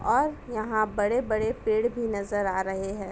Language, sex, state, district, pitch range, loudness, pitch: Hindi, female, Uttar Pradesh, Etah, 205-235 Hz, -27 LUFS, 215 Hz